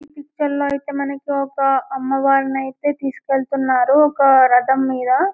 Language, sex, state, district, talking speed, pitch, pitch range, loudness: Telugu, female, Telangana, Karimnagar, 135 wpm, 275 Hz, 265-285 Hz, -17 LUFS